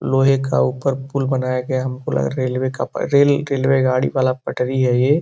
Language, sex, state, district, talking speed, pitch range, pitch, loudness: Hindi, male, Uttar Pradesh, Gorakhpur, 220 wpm, 130-135 Hz, 130 Hz, -19 LUFS